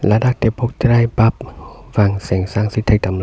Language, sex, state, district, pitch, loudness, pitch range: Karbi, male, Assam, Karbi Anglong, 110 Hz, -16 LUFS, 100-120 Hz